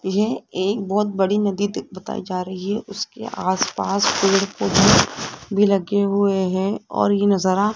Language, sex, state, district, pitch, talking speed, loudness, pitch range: Hindi, female, Rajasthan, Jaipur, 200 Hz, 180 wpm, -20 LUFS, 190-205 Hz